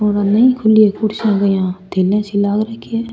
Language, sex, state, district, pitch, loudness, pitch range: Rajasthani, female, Rajasthan, Churu, 210 Hz, -15 LUFS, 200-220 Hz